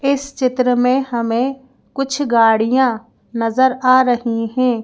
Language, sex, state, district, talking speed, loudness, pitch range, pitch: Hindi, female, Madhya Pradesh, Bhopal, 125 wpm, -16 LUFS, 230-260 Hz, 255 Hz